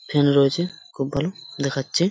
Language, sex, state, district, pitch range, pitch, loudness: Bengali, male, West Bengal, Purulia, 140-170 Hz, 145 Hz, -23 LUFS